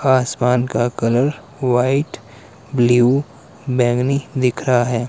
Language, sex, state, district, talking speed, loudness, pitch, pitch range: Hindi, male, Himachal Pradesh, Shimla, 105 wpm, -18 LUFS, 125 Hz, 120-135 Hz